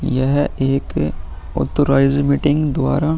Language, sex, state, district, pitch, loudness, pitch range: Hindi, female, Bihar, Vaishali, 135 Hz, -17 LUFS, 130-145 Hz